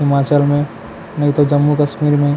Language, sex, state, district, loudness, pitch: Chhattisgarhi, male, Chhattisgarh, Kabirdham, -15 LUFS, 145 Hz